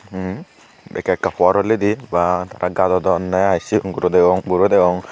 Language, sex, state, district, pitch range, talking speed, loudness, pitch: Chakma, male, Tripura, Unakoti, 90-100 Hz, 165 wpm, -17 LUFS, 95 Hz